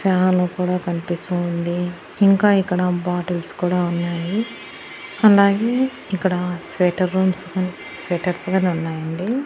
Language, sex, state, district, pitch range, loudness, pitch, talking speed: Telugu, female, Andhra Pradesh, Annamaya, 175-190 Hz, -20 LUFS, 180 Hz, 100 wpm